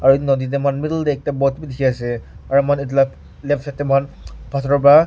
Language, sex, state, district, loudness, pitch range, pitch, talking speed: Nagamese, male, Nagaland, Kohima, -19 LUFS, 135-145 Hz, 140 Hz, 295 wpm